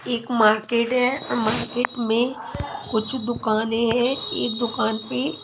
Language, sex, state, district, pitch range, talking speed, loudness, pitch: Hindi, female, Himachal Pradesh, Shimla, 225-250 Hz, 120 wpm, -23 LUFS, 240 Hz